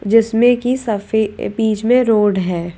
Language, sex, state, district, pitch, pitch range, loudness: Hindi, female, Madhya Pradesh, Bhopal, 220 Hz, 205-240 Hz, -16 LUFS